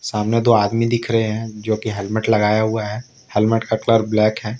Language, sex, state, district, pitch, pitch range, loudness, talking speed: Hindi, male, Jharkhand, Ranchi, 110 Hz, 110-115 Hz, -18 LUFS, 220 wpm